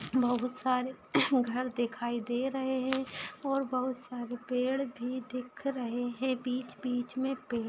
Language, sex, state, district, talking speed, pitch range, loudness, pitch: Hindi, female, Bihar, Saharsa, 150 wpm, 245-260 Hz, -33 LUFS, 255 Hz